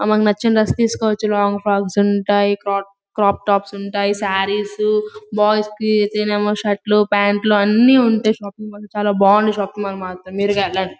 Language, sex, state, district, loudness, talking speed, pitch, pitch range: Telugu, female, Andhra Pradesh, Guntur, -17 LUFS, 165 wpm, 205 Hz, 200-215 Hz